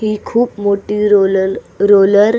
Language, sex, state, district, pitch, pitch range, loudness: Marathi, female, Maharashtra, Solapur, 205 Hz, 200-215 Hz, -13 LUFS